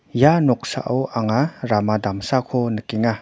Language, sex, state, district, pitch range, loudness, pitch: Garo, male, Meghalaya, North Garo Hills, 110-130 Hz, -20 LUFS, 120 Hz